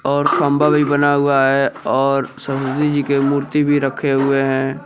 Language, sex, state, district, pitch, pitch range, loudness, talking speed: Hindi, male, Uttar Pradesh, Lucknow, 140 Hz, 135-145 Hz, -16 LUFS, 185 wpm